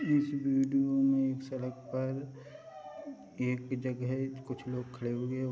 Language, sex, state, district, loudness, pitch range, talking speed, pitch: Hindi, male, Bihar, Sitamarhi, -33 LUFS, 130-135 Hz, 130 wpm, 130 Hz